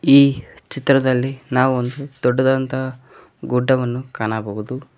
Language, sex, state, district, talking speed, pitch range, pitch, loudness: Kannada, male, Karnataka, Koppal, 85 wpm, 125-135 Hz, 130 Hz, -19 LUFS